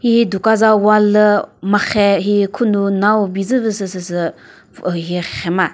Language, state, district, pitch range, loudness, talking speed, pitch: Chakhesang, Nagaland, Dimapur, 185-215 Hz, -15 LUFS, 155 wpm, 205 Hz